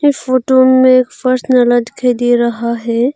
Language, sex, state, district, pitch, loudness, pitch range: Hindi, female, Arunachal Pradesh, Longding, 255 Hz, -12 LUFS, 240-260 Hz